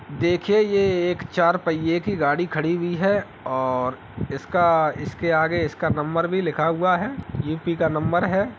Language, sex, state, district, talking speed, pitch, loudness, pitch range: Hindi, male, Uttar Pradesh, Etah, 160 wpm, 165 Hz, -22 LUFS, 150-175 Hz